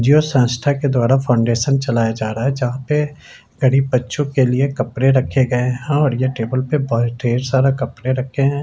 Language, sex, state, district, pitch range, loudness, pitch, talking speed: Hindi, male, Bihar, Lakhisarai, 125-140 Hz, -17 LUFS, 130 Hz, 200 wpm